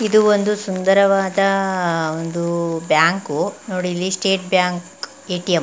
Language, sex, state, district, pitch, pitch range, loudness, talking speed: Kannada, female, Karnataka, Chamarajanagar, 185 Hz, 170-195 Hz, -18 LUFS, 105 wpm